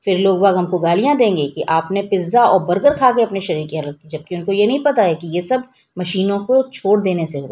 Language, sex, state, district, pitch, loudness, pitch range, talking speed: Hindi, female, Bihar, Patna, 190 Hz, -16 LUFS, 170-220 Hz, 245 wpm